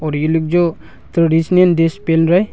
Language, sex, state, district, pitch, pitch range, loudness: Hindi, male, Arunachal Pradesh, Longding, 165 Hz, 160-175 Hz, -15 LUFS